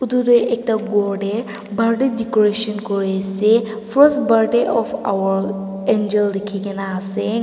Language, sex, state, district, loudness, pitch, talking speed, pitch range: Nagamese, female, Nagaland, Dimapur, -18 LUFS, 210 Hz, 135 wpm, 200-230 Hz